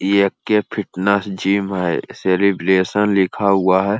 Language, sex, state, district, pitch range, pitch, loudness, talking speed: Hindi, male, Uttar Pradesh, Hamirpur, 95-100 Hz, 100 Hz, -17 LUFS, 135 wpm